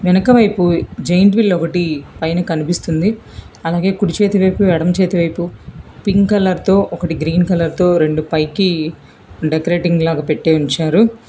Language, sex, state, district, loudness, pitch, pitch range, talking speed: Telugu, female, Telangana, Hyderabad, -15 LUFS, 175 Hz, 160-190 Hz, 140 wpm